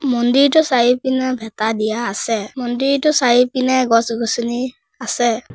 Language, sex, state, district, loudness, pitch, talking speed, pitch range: Assamese, female, Assam, Sonitpur, -17 LUFS, 245 Hz, 120 wpm, 230-260 Hz